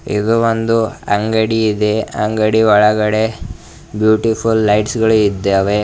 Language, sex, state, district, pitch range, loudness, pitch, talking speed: Kannada, male, Karnataka, Bidar, 105-110 Hz, -14 LUFS, 110 Hz, 90 wpm